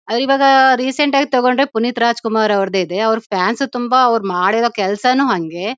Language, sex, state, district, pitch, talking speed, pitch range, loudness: Kannada, female, Karnataka, Bellary, 235 Hz, 145 wpm, 205-260 Hz, -15 LUFS